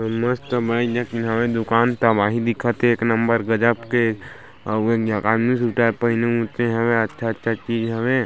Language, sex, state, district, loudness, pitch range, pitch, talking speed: Chhattisgarhi, male, Chhattisgarh, Sarguja, -20 LUFS, 115-120 Hz, 115 Hz, 180 wpm